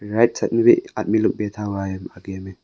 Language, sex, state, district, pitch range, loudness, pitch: Hindi, male, Arunachal Pradesh, Longding, 95-105 Hz, -20 LUFS, 100 Hz